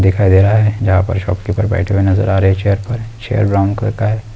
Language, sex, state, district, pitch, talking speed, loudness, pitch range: Hindi, male, Bihar, Araria, 100 Hz, 275 wpm, -14 LUFS, 95-110 Hz